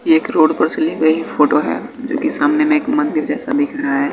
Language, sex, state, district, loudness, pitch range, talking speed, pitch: Hindi, male, Bihar, West Champaran, -16 LUFS, 260-305 Hz, 260 wpm, 290 Hz